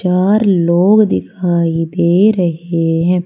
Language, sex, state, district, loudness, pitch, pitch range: Hindi, female, Madhya Pradesh, Umaria, -13 LUFS, 175 Hz, 170-190 Hz